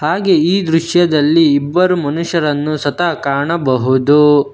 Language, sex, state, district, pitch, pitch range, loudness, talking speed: Kannada, male, Karnataka, Bangalore, 150 Hz, 145-170 Hz, -13 LUFS, 90 wpm